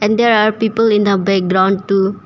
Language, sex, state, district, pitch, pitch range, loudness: English, female, Arunachal Pradesh, Papum Pare, 205 Hz, 195-215 Hz, -14 LUFS